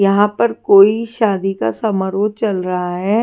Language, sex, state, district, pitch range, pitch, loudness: Hindi, female, Delhi, New Delhi, 190-220 Hz, 200 Hz, -15 LUFS